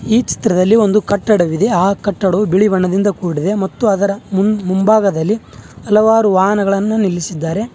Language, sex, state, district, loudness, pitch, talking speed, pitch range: Kannada, male, Karnataka, Bangalore, -14 LUFS, 200 Hz, 115 wpm, 190-210 Hz